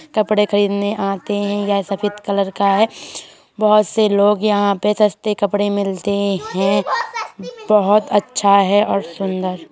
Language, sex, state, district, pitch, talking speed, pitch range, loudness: Hindi, male, Uttar Pradesh, Hamirpur, 205 Hz, 150 wpm, 200-210 Hz, -17 LUFS